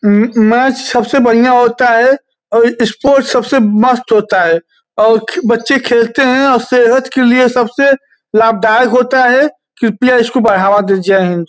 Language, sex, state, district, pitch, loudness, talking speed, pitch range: Hindi, male, Uttar Pradesh, Gorakhpur, 240 Hz, -10 LUFS, 160 wpm, 220-255 Hz